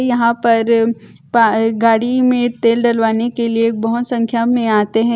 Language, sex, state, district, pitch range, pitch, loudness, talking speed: Hindi, male, Chhattisgarh, Bilaspur, 225-240 Hz, 230 Hz, -15 LUFS, 150 wpm